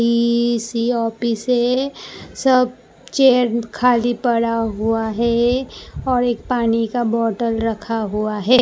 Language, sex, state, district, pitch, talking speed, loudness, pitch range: Hindi, female, Gujarat, Gandhinagar, 235 Hz, 120 wpm, -18 LUFS, 230-245 Hz